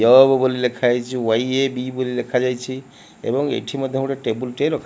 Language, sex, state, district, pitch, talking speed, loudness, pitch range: Odia, male, Odisha, Malkangiri, 130 Hz, 160 wpm, -20 LUFS, 125-135 Hz